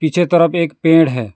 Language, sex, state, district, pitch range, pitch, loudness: Hindi, male, West Bengal, Alipurduar, 155-170 Hz, 165 Hz, -13 LUFS